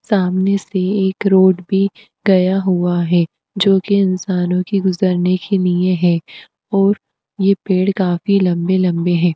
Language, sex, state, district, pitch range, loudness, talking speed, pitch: Hindi, female, Uttar Pradesh, Etah, 180-195 Hz, -16 LUFS, 135 wpm, 185 Hz